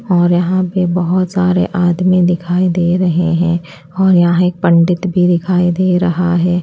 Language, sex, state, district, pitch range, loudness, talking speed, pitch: Hindi, female, Odisha, Malkangiri, 175-180 Hz, -13 LUFS, 170 wpm, 180 Hz